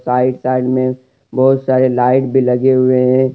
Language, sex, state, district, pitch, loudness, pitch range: Hindi, male, Jharkhand, Deoghar, 130 Hz, -13 LUFS, 125-130 Hz